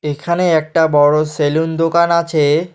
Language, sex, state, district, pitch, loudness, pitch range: Bengali, male, West Bengal, Alipurduar, 160 Hz, -14 LUFS, 150-170 Hz